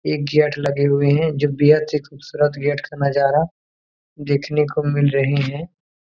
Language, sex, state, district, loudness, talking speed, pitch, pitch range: Hindi, male, Bihar, Saran, -19 LUFS, 170 wpm, 145 Hz, 140-150 Hz